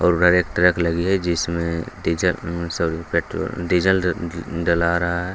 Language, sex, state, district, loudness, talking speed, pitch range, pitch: Hindi, male, Bihar, Gaya, -21 LUFS, 135 wpm, 85-90 Hz, 85 Hz